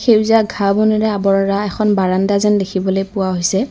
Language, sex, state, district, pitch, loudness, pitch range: Assamese, female, Assam, Kamrup Metropolitan, 200 Hz, -15 LUFS, 195-215 Hz